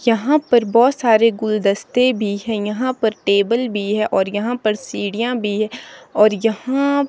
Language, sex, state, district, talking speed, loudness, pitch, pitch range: Hindi, female, Himachal Pradesh, Shimla, 175 wpm, -18 LUFS, 225 Hz, 210-245 Hz